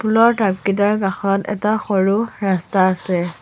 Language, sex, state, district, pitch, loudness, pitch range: Assamese, female, Assam, Sonitpur, 200 Hz, -18 LUFS, 190-210 Hz